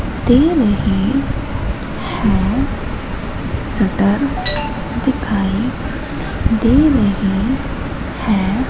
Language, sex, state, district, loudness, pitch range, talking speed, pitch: Hindi, female, Madhya Pradesh, Katni, -17 LUFS, 200-265 Hz, 55 wpm, 225 Hz